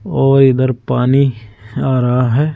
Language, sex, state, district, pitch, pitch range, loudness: Hindi, male, Uttar Pradesh, Saharanpur, 130 Hz, 125-135 Hz, -13 LUFS